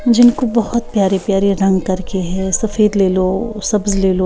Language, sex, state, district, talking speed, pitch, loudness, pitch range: Hindi, female, Bihar, Patna, 185 wpm, 200 Hz, -15 LUFS, 190-225 Hz